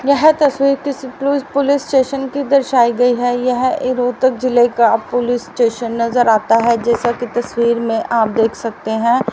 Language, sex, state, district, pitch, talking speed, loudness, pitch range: Hindi, female, Haryana, Rohtak, 245 Hz, 180 wpm, -15 LUFS, 235-270 Hz